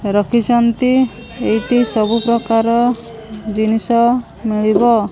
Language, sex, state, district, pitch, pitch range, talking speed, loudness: Odia, female, Odisha, Malkangiri, 230 Hz, 220-240 Hz, 70 wpm, -15 LUFS